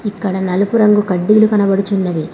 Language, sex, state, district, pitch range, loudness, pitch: Telugu, female, Telangana, Hyderabad, 185-210 Hz, -14 LUFS, 200 Hz